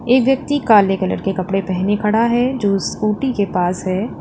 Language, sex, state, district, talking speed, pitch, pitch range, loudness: Hindi, female, Uttar Pradesh, Lalitpur, 200 wpm, 205 Hz, 195-245 Hz, -17 LUFS